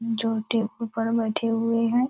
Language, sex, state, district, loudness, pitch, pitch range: Hindi, female, Bihar, Purnia, -25 LUFS, 230 Hz, 225-230 Hz